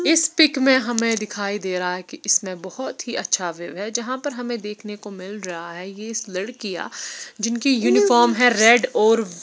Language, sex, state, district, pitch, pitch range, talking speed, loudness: Hindi, female, Bihar, Patna, 215 Hz, 190-240 Hz, 195 wpm, -20 LUFS